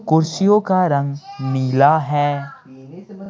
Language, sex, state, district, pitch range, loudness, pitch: Hindi, male, Bihar, Patna, 140-185 Hz, -17 LUFS, 150 Hz